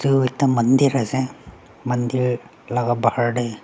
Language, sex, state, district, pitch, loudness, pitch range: Nagamese, male, Nagaland, Dimapur, 125 Hz, -20 LUFS, 120-130 Hz